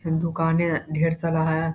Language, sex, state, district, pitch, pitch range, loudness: Hindi, male, Bihar, Saharsa, 165 Hz, 160-165 Hz, -23 LUFS